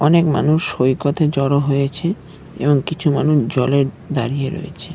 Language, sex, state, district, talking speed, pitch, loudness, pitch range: Bengali, male, West Bengal, Cooch Behar, 135 wpm, 145 Hz, -18 LUFS, 135-155 Hz